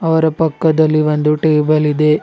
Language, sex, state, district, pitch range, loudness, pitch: Kannada, male, Karnataka, Bidar, 150-160 Hz, -14 LUFS, 155 Hz